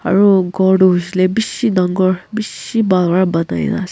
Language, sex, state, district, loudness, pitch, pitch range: Nagamese, female, Nagaland, Kohima, -15 LUFS, 190 Hz, 185-210 Hz